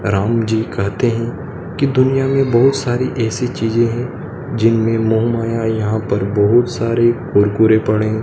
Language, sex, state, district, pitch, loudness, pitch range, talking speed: Hindi, male, Madhya Pradesh, Dhar, 115 Hz, -16 LUFS, 110-125 Hz, 155 wpm